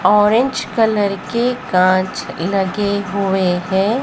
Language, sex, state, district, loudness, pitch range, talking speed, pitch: Hindi, female, Madhya Pradesh, Dhar, -17 LUFS, 185-220 Hz, 105 wpm, 200 Hz